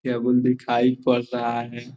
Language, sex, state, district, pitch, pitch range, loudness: Hindi, male, Bihar, Gopalganj, 125 Hz, 120-125 Hz, -22 LUFS